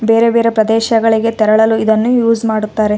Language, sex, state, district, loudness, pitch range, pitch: Kannada, female, Karnataka, Raichur, -12 LUFS, 220-230 Hz, 225 Hz